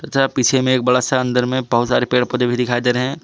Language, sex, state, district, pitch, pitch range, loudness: Hindi, male, Jharkhand, Palamu, 125 Hz, 125-130 Hz, -17 LUFS